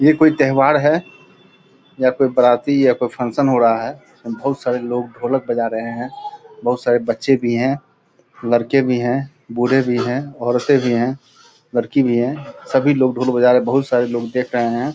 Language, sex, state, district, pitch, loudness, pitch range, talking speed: Hindi, male, Bihar, Purnia, 125 Hz, -17 LUFS, 120-140 Hz, 200 wpm